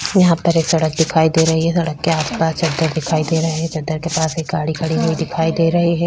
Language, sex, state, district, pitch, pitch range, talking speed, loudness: Hindi, female, Bihar, Vaishali, 160 Hz, 160-165 Hz, 295 wpm, -17 LUFS